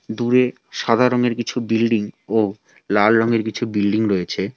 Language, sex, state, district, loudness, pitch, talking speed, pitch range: Bengali, male, West Bengal, Alipurduar, -19 LUFS, 110 Hz, 145 wpm, 105-120 Hz